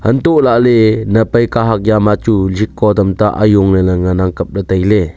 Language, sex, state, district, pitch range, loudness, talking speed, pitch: Wancho, male, Arunachal Pradesh, Longding, 95-110 Hz, -12 LUFS, 210 wpm, 105 Hz